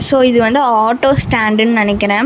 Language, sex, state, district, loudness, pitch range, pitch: Tamil, female, Tamil Nadu, Namakkal, -12 LUFS, 215-265 Hz, 225 Hz